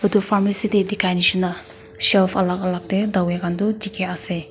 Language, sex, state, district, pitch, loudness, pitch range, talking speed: Nagamese, female, Nagaland, Kohima, 185 Hz, -18 LUFS, 180-205 Hz, 200 wpm